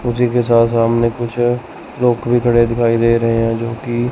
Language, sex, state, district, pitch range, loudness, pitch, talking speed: Hindi, male, Chandigarh, Chandigarh, 115-120 Hz, -15 LUFS, 120 Hz, 175 wpm